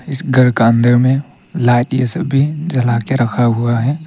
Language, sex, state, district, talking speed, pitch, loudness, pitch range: Hindi, male, Arunachal Pradesh, Papum Pare, 190 wpm, 125 Hz, -14 LUFS, 120-135 Hz